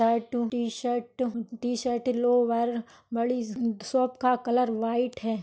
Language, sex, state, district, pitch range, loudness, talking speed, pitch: Hindi, female, Maharashtra, Solapur, 230-245 Hz, -28 LUFS, 110 wpm, 240 Hz